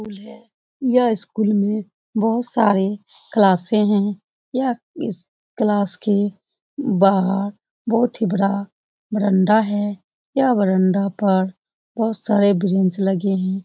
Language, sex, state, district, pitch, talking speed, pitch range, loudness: Hindi, female, Bihar, Lakhisarai, 205 Hz, 125 wpm, 195-225 Hz, -19 LUFS